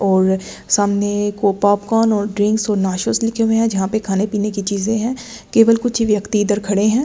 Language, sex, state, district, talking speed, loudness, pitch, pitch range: Hindi, female, Delhi, New Delhi, 205 wpm, -17 LUFS, 210 Hz, 200-225 Hz